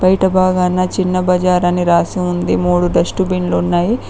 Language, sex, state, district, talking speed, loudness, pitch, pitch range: Telugu, female, Telangana, Mahabubabad, 145 wpm, -14 LUFS, 180 Hz, 175-185 Hz